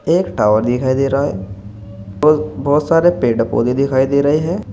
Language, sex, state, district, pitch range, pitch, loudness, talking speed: Hindi, male, Uttar Pradesh, Saharanpur, 105-150 Hz, 130 Hz, -15 LUFS, 180 wpm